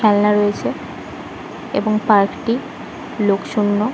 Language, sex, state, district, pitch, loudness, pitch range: Bengali, male, West Bengal, Kolkata, 210 Hz, -18 LUFS, 205-225 Hz